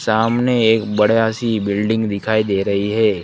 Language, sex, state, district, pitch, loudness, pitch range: Hindi, male, Gujarat, Gandhinagar, 110 Hz, -17 LUFS, 105-110 Hz